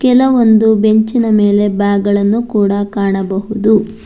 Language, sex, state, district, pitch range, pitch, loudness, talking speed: Kannada, female, Karnataka, Bangalore, 205-220 Hz, 210 Hz, -12 LUFS, 105 wpm